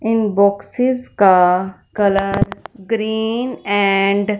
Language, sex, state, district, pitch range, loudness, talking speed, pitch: Hindi, female, Punjab, Fazilka, 195-220 Hz, -16 LUFS, 95 wpm, 200 Hz